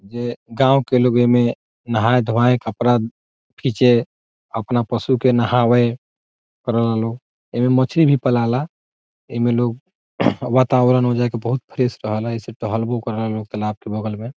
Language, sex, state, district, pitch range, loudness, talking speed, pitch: Bhojpuri, male, Bihar, Saran, 115-125 Hz, -18 LUFS, 160 wpm, 120 Hz